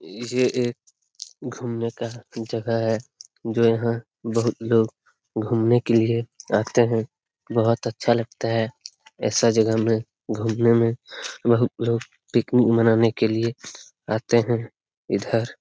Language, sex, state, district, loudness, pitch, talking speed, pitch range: Hindi, male, Bihar, Lakhisarai, -23 LUFS, 115 Hz, 140 wpm, 115-120 Hz